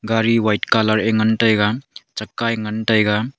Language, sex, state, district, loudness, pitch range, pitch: Wancho, male, Arunachal Pradesh, Longding, -17 LUFS, 110-115 Hz, 110 Hz